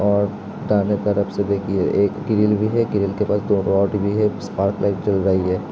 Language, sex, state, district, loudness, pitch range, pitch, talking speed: Hindi, male, Uttar Pradesh, Hamirpur, -20 LUFS, 100-105 Hz, 100 Hz, 200 wpm